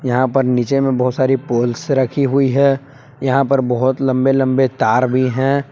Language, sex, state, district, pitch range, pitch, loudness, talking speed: Hindi, male, Jharkhand, Palamu, 130-135 Hz, 130 Hz, -16 LUFS, 190 wpm